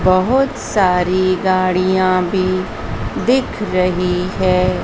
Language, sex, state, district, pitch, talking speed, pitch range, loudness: Hindi, female, Madhya Pradesh, Dhar, 185 Hz, 85 wpm, 185-190 Hz, -16 LUFS